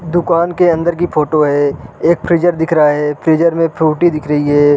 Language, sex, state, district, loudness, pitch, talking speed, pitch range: Hindi, male, Uttarakhand, Uttarkashi, -13 LUFS, 160 Hz, 215 wpm, 150-170 Hz